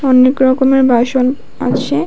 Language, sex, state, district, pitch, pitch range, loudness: Bengali, female, Tripura, West Tripura, 260 Hz, 255-265 Hz, -12 LUFS